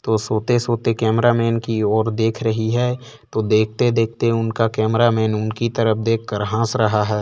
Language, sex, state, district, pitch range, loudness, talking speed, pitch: Chhattisgarhi, male, Chhattisgarh, Korba, 110-115 Hz, -19 LUFS, 175 wpm, 115 Hz